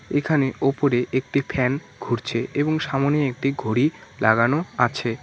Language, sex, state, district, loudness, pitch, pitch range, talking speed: Bengali, male, West Bengal, Cooch Behar, -22 LUFS, 135 Hz, 120-145 Hz, 125 wpm